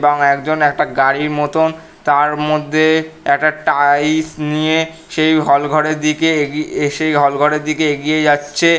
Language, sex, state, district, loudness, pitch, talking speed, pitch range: Bengali, male, West Bengal, North 24 Parganas, -15 LUFS, 150 Hz, 155 wpm, 145-155 Hz